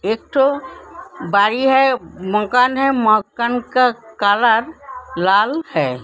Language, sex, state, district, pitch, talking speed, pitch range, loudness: Hindi, female, Uttar Pradesh, Hamirpur, 245 Hz, 110 wpm, 210-265 Hz, -16 LUFS